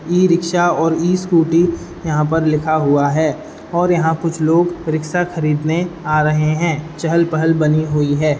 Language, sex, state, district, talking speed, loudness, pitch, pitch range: Hindi, male, Uttar Pradesh, Budaun, 180 wpm, -16 LUFS, 160 Hz, 155-170 Hz